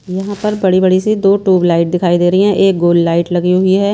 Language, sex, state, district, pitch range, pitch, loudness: Hindi, female, Himachal Pradesh, Shimla, 175-195 Hz, 185 Hz, -12 LUFS